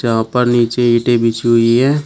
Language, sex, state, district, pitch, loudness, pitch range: Hindi, male, Uttar Pradesh, Shamli, 120 Hz, -13 LUFS, 115-125 Hz